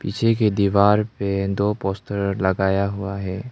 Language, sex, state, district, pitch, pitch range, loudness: Hindi, male, Arunachal Pradesh, Lower Dibang Valley, 100 Hz, 100-105 Hz, -21 LUFS